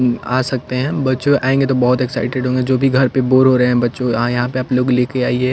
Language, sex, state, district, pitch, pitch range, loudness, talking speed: Hindi, male, Chandigarh, Chandigarh, 125 Hz, 125-130 Hz, -16 LUFS, 295 wpm